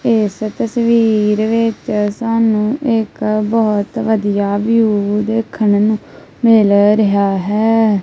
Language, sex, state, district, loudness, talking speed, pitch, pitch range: Punjabi, female, Punjab, Kapurthala, -14 LUFS, 95 wpm, 215 Hz, 205-225 Hz